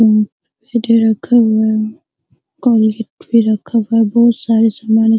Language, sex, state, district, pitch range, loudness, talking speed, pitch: Hindi, female, Bihar, Araria, 220-230 Hz, -14 LUFS, 80 wpm, 225 Hz